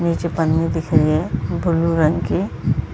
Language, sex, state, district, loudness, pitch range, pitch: Hindi, female, Chhattisgarh, Balrampur, -19 LUFS, 160-170 Hz, 165 Hz